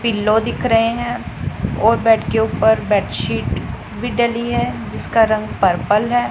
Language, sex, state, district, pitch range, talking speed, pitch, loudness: Hindi, female, Punjab, Pathankot, 205-230 Hz, 150 wpm, 220 Hz, -17 LUFS